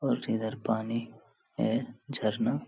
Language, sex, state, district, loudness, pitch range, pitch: Hindi, male, Bihar, Supaul, -32 LUFS, 110-120 Hz, 115 Hz